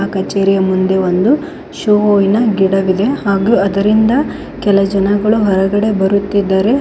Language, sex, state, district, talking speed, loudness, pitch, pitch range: Kannada, female, Karnataka, Koppal, 95 wpm, -13 LUFS, 200 Hz, 195-215 Hz